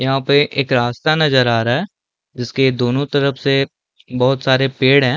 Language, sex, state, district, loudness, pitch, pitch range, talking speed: Hindi, male, Chhattisgarh, Balrampur, -16 LUFS, 135 Hz, 125-140 Hz, 185 wpm